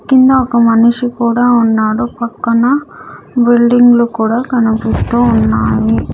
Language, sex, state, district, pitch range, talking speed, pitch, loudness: Telugu, female, Andhra Pradesh, Sri Satya Sai, 220-245 Hz, 100 wpm, 235 Hz, -11 LUFS